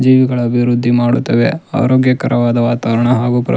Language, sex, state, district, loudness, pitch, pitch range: Kannada, male, Karnataka, Shimoga, -13 LUFS, 120 Hz, 120-130 Hz